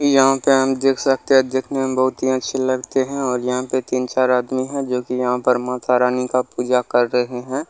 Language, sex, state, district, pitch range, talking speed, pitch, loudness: Maithili, male, Bihar, Saharsa, 125-135 Hz, 235 wpm, 130 Hz, -19 LUFS